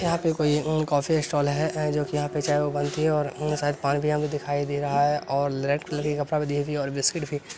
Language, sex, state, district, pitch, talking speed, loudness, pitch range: Hindi, male, Bihar, Bhagalpur, 150 Hz, 310 wpm, -25 LUFS, 145-150 Hz